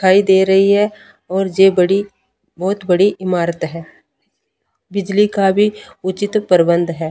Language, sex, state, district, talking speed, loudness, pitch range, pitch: Hindi, female, Punjab, Pathankot, 145 wpm, -15 LUFS, 180-205 Hz, 195 Hz